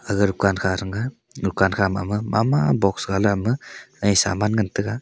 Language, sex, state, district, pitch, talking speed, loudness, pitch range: Wancho, male, Arunachal Pradesh, Longding, 100 Hz, 165 wpm, -21 LUFS, 95-110 Hz